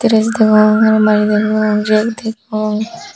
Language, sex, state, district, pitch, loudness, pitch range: Chakma, female, Tripura, Dhalai, 215 Hz, -13 LUFS, 215-220 Hz